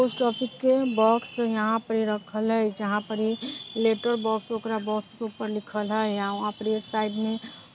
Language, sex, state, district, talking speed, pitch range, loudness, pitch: Bajjika, female, Bihar, Vaishali, 200 wpm, 215-230 Hz, -27 LUFS, 220 Hz